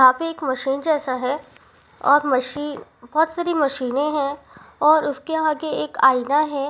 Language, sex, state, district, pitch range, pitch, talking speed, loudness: Hindi, female, Rajasthan, Churu, 265-310 Hz, 285 Hz, 160 wpm, -21 LUFS